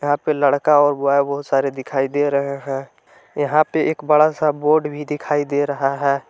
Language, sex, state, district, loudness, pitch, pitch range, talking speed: Hindi, male, Jharkhand, Palamu, -18 LUFS, 145 Hz, 140-150 Hz, 210 wpm